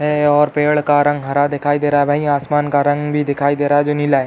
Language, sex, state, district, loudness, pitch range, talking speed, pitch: Hindi, male, Uttar Pradesh, Hamirpur, -16 LUFS, 145-150 Hz, 310 wpm, 145 Hz